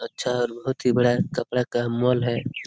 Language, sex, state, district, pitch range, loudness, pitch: Hindi, male, Jharkhand, Sahebganj, 120-125 Hz, -24 LUFS, 125 Hz